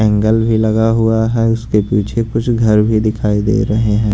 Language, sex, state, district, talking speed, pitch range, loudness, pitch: Hindi, male, Punjab, Pathankot, 205 wpm, 105-115 Hz, -14 LUFS, 110 Hz